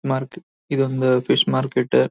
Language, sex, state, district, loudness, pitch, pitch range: Kannada, male, Karnataka, Belgaum, -20 LUFS, 130 Hz, 125-135 Hz